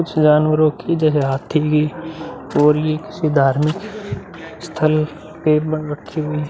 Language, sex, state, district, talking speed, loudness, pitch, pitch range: Hindi, male, Bihar, Vaishali, 90 wpm, -18 LUFS, 155 Hz, 150-160 Hz